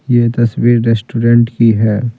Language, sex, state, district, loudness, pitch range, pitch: Hindi, male, Bihar, Patna, -12 LUFS, 115-120 Hz, 115 Hz